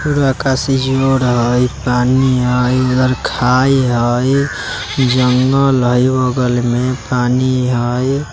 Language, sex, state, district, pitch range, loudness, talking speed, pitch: Bajjika, male, Bihar, Vaishali, 125-130 Hz, -14 LUFS, 110 wpm, 130 Hz